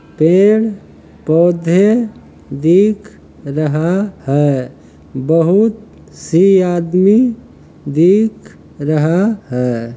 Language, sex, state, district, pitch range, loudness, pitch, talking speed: Hindi, male, Uttar Pradesh, Hamirpur, 155-205 Hz, -13 LUFS, 175 Hz, 65 wpm